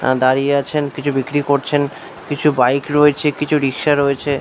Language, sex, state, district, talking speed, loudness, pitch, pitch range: Bengali, male, West Bengal, Paschim Medinipur, 175 wpm, -17 LUFS, 140 Hz, 135-150 Hz